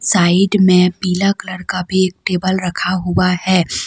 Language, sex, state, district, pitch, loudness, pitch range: Hindi, female, Jharkhand, Deoghar, 185 Hz, -15 LUFS, 180-190 Hz